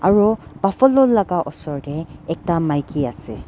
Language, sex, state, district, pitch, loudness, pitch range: Nagamese, female, Nagaland, Dimapur, 170 Hz, -19 LUFS, 150-205 Hz